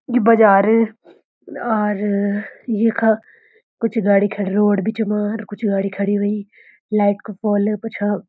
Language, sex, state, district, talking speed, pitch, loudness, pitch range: Garhwali, female, Uttarakhand, Uttarkashi, 145 wpm, 210 Hz, -18 LUFS, 205-225 Hz